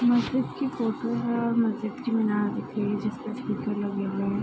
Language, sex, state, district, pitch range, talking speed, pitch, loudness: Hindi, female, Bihar, Araria, 210-235 Hz, 215 wpm, 225 Hz, -28 LUFS